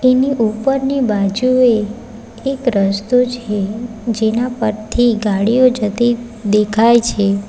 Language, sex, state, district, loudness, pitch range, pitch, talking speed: Gujarati, female, Gujarat, Valsad, -15 LUFS, 210-250 Hz, 230 Hz, 95 wpm